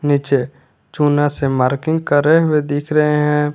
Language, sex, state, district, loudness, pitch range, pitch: Hindi, male, Jharkhand, Garhwa, -16 LUFS, 145-150 Hz, 145 Hz